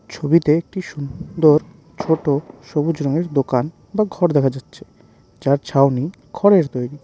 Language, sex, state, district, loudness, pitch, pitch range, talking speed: Bengali, male, West Bengal, Alipurduar, -19 LUFS, 150 Hz, 140-170 Hz, 130 wpm